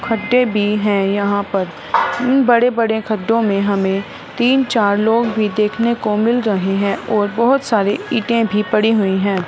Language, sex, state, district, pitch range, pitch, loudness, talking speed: Hindi, female, Punjab, Fazilka, 200-235 Hz, 215 Hz, -16 LUFS, 170 wpm